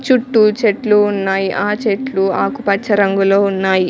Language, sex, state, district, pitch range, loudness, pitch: Telugu, female, Telangana, Mahabubabad, 195-215 Hz, -15 LUFS, 205 Hz